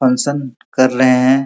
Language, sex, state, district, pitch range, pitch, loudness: Hindi, male, Uttar Pradesh, Muzaffarnagar, 130-135 Hz, 130 Hz, -15 LUFS